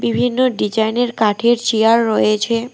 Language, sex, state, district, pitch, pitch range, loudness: Bengali, female, West Bengal, Alipurduar, 230 Hz, 215-240 Hz, -16 LUFS